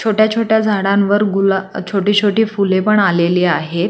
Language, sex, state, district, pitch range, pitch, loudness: Marathi, female, Maharashtra, Solapur, 190-210 Hz, 200 Hz, -14 LUFS